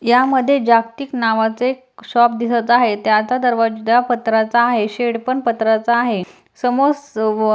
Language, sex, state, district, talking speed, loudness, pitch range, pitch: Marathi, female, Maharashtra, Aurangabad, 145 wpm, -16 LUFS, 225-245 Hz, 235 Hz